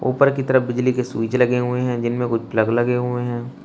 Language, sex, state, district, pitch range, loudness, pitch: Hindi, male, Uttar Pradesh, Shamli, 120-125 Hz, -20 LUFS, 125 Hz